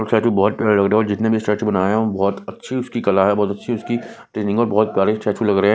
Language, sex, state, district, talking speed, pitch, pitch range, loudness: Hindi, male, Maharashtra, Gondia, 270 wpm, 105 Hz, 100-110 Hz, -18 LUFS